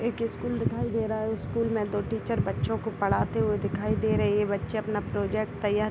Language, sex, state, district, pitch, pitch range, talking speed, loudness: Hindi, female, Bihar, Gopalganj, 215 Hz, 210-225 Hz, 245 wpm, -28 LUFS